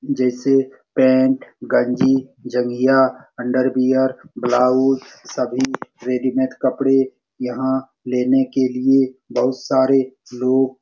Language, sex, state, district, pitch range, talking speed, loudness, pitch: Hindi, male, Bihar, Supaul, 125-135 Hz, 95 wpm, -18 LUFS, 130 Hz